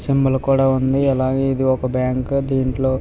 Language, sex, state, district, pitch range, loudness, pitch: Telugu, male, Andhra Pradesh, Visakhapatnam, 130-135 Hz, -18 LUFS, 135 Hz